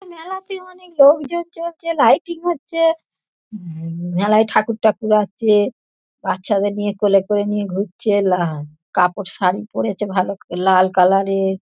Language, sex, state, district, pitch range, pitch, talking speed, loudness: Bengali, female, West Bengal, Dakshin Dinajpur, 190-295 Hz, 205 Hz, 100 wpm, -18 LUFS